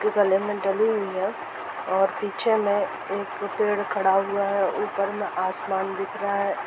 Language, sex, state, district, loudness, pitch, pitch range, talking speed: Hindi, female, Bihar, Darbhanga, -25 LUFS, 200 Hz, 195-205 Hz, 160 wpm